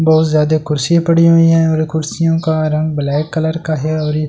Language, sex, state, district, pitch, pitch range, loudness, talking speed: Hindi, male, Delhi, New Delhi, 155 Hz, 155-165 Hz, -14 LUFS, 265 wpm